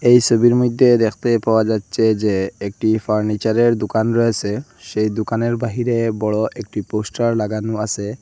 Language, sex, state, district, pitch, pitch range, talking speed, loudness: Bengali, male, Assam, Hailakandi, 110 Hz, 105-115 Hz, 140 wpm, -18 LUFS